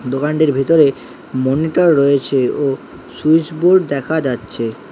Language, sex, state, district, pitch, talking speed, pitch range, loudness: Bengali, male, West Bengal, Alipurduar, 145 Hz, 110 wpm, 135-160 Hz, -15 LUFS